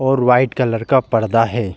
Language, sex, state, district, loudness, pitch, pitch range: Hindi, male, Bihar, Bhagalpur, -16 LUFS, 125 Hz, 115-130 Hz